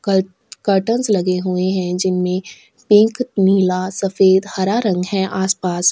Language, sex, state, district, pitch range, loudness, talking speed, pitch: Hindi, female, Chhattisgarh, Sukma, 185-205 Hz, -17 LUFS, 140 wpm, 190 Hz